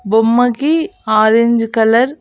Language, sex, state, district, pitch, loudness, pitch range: Telugu, female, Andhra Pradesh, Annamaya, 230 Hz, -13 LUFS, 225-255 Hz